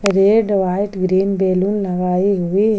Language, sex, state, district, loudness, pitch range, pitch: Hindi, female, Jharkhand, Palamu, -16 LUFS, 185-200 Hz, 195 Hz